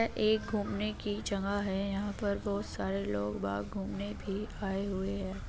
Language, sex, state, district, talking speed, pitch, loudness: Hindi, female, Uttar Pradesh, Muzaffarnagar, 195 wpm, 195 Hz, -35 LUFS